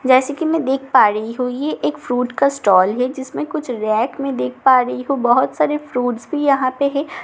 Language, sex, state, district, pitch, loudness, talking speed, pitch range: Hindi, female, Bihar, Katihar, 260 Hz, -18 LUFS, 230 wpm, 245-280 Hz